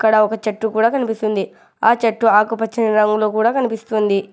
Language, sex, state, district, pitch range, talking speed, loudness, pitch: Telugu, male, Telangana, Hyderabad, 215-225 Hz, 150 wpm, -17 LUFS, 220 Hz